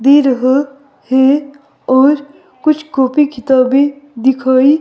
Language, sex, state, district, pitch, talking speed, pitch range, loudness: Hindi, female, Himachal Pradesh, Shimla, 275 Hz, 110 wpm, 260-285 Hz, -12 LUFS